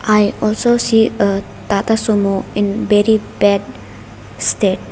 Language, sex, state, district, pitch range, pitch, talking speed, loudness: English, female, Arunachal Pradesh, Lower Dibang Valley, 195-215 Hz, 205 Hz, 120 wpm, -15 LUFS